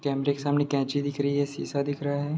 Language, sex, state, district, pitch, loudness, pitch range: Hindi, male, Bihar, Sitamarhi, 145 Hz, -27 LUFS, 140-145 Hz